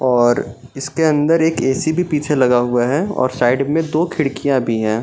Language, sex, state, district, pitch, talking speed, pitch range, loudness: Hindi, male, Bihar, Gaya, 135 Hz, 205 wpm, 125-160 Hz, -17 LUFS